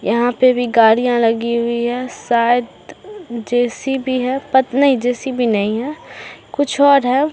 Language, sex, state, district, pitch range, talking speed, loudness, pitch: Hindi, male, Bihar, Samastipur, 235-270 Hz, 155 wpm, -16 LUFS, 245 Hz